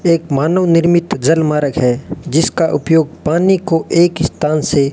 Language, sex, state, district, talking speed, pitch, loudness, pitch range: Hindi, male, Rajasthan, Bikaner, 170 wpm, 160 Hz, -14 LUFS, 150-170 Hz